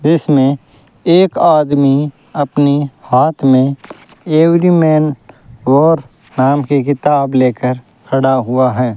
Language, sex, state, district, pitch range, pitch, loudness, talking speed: Hindi, male, Rajasthan, Bikaner, 130-155 Hz, 140 Hz, -12 LUFS, 105 wpm